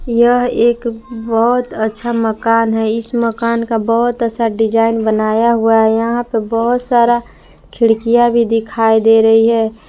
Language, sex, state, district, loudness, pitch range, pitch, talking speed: Hindi, female, Jharkhand, Palamu, -13 LUFS, 225-235 Hz, 230 Hz, 150 wpm